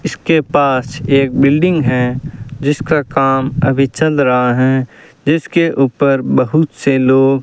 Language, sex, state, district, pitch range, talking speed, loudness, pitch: Hindi, male, Rajasthan, Bikaner, 130-150 Hz, 135 wpm, -13 LUFS, 135 Hz